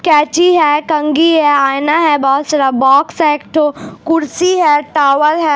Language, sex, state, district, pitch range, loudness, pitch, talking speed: Hindi, female, Uttar Pradesh, Hamirpur, 290-320 Hz, -12 LUFS, 300 Hz, 170 wpm